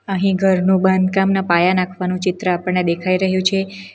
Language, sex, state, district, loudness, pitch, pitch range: Gujarati, female, Gujarat, Valsad, -17 LUFS, 185 Hz, 185-195 Hz